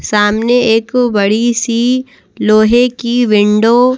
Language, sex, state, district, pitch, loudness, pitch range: Hindi, female, Madhya Pradesh, Bhopal, 235 Hz, -11 LUFS, 215-245 Hz